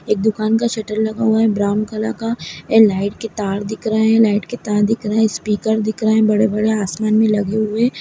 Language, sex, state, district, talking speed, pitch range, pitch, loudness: Hindi, male, Bihar, Gaya, 225 wpm, 210-220 Hz, 220 Hz, -17 LUFS